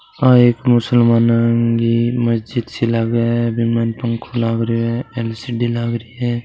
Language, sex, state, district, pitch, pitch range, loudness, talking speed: Hindi, male, Rajasthan, Churu, 115 Hz, 115-120 Hz, -16 LUFS, 195 wpm